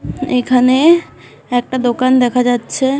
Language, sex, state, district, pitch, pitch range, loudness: Bengali, female, West Bengal, Malda, 255 Hz, 245-260 Hz, -13 LUFS